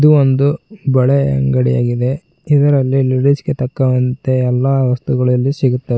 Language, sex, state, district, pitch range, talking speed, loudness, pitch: Kannada, male, Karnataka, Koppal, 125-140 Hz, 110 wpm, -14 LUFS, 130 Hz